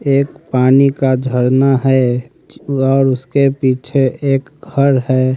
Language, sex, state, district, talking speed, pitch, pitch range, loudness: Hindi, male, Haryana, Rohtak, 125 wpm, 135 Hz, 130-140 Hz, -14 LUFS